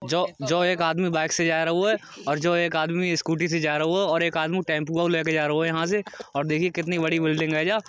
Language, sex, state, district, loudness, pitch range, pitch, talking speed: Hindi, male, Uttar Pradesh, Budaun, -24 LUFS, 155-175 Hz, 165 Hz, 245 wpm